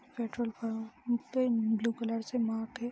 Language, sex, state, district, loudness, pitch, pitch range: Hindi, female, Bihar, Samastipur, -33 LUFS, 230 Hz, 225-240 Hz